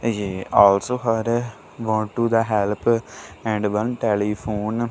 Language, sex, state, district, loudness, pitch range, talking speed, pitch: English, male, Punjab, Kapurthala, -21 LUFS, 105-115 Hz, 135 wpm, 110 Hz